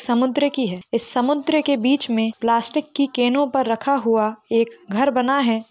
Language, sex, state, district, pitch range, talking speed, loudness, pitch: Hindi, female, Maharashtra, Dhule, 230-280 Hz, 190 wpm, -20 LUFS, 250 Hz